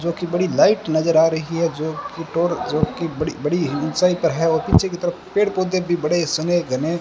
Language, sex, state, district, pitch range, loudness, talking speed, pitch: Hindi, male, Rajasthan, Bikaner, 160-175 Hz, -20 LUFS, 240 wpm, 165 Hz